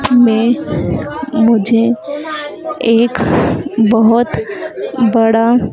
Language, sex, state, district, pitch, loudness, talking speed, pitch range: Hindi, female, Madhya Pradesh, Dhar, 235 Hz, -13 LUFS, 50 wpm, 225-290 Hz